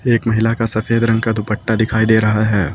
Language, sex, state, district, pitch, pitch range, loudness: Hindi, male, Uttar Pradesh, Lucknow, 110 Hz, 110-115 Hz, -15 LUFS